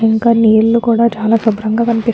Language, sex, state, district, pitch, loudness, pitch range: Telugu, female, Andhra Pradesh, Anantapur, 225 Hz, -12 LUFS, 220-230 Hz